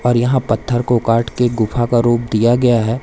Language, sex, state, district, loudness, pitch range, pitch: Hindi, male, Madhya Pradesh, Umaria, -15 LUFS, 115-120 Hz, 120 Hz